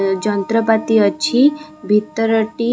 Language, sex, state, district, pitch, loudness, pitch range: Odia, female, Odisha, Khordha, 225 Hz, -16 LUFS, 210-240 Hz